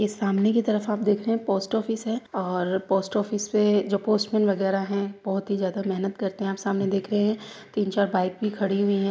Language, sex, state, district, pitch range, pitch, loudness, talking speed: Hindi, female, Uttar Pradesh, Hamirpur, 195-215 Hz, 200 Hz, -25 LUFS, 245 wpm